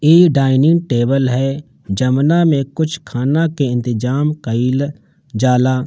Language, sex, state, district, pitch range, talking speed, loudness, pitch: Bhojpuri, male, Bihar, Gopalganj, 125-155 Hz, 125 wpm, -15 LUFS, 135 Hz